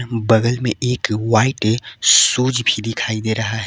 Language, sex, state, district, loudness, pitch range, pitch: Hindi, male, Jharkhand, Garhwa, -16 LUFS, 110-125 Hz, 115 Hz